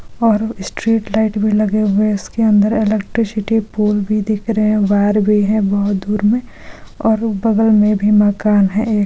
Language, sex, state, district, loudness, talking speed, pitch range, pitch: Hindi, female, Bihar, Supaul, -15 LUFS, 200 wpm, 205-220 Hz, 210 Hz